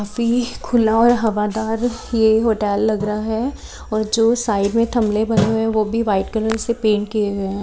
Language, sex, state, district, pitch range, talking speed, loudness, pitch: Hindi, female, Chhattisgarh, Raipur, 210-230 Hz, 195 wpm, -18 LUFS, 220 Hz